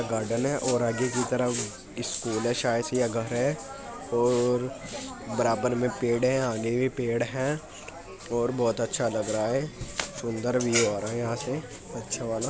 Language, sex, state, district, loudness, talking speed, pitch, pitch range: Hindi, male, Uttar Pradesh, Muzaffarnagar, -28 LUFS, 180 wpm, 120 Hz, 115-125 Hz